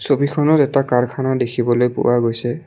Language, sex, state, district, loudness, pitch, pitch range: Assamese, male, Assam, Kamrup Metropolitan, -17 LUFS, 125 Hz, 120-140 Hz